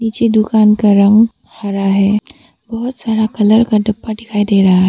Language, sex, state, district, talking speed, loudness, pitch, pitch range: Hindi, female, Arunachal Pradesh, Papum Pare, 185 wpm, -13 LUFS, 215 Hz, 205-225 Hz